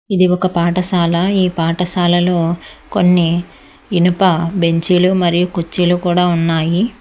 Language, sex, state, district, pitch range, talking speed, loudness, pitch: Telugu, female, Telangana, Hyderabad, 170-185 Hz, 105 wpm, -14 LUFS, 175 Hz